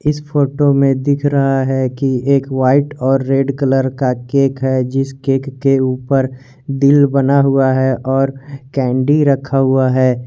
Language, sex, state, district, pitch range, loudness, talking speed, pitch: Hindi, male, Jharkhand, Garhwa, 130-140 Hz, -14 LUFS, 165 wpm, 135 Hz